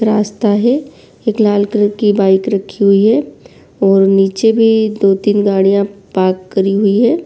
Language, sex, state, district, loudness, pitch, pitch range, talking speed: Hindi, female, Bihar, Begusarai, -13 LUFS, 205 Hz, 195-220 Hz, 150 wpm